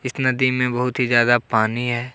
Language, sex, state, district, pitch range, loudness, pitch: Hindi, male, Jharkhand, Deoghar, 120-130 Hz, -19 LUFS, 125 Hz